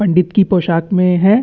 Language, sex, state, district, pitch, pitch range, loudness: Hindi, male, Chhattisgarh, Bastar, 185 Hz, 180-200 Hz, -13 LUFS